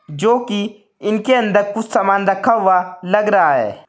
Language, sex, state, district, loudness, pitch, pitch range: Hindi, male, Uttar Pradesh, Saharanpur, -16 LUFS, 210 Hz, 195-225 Hz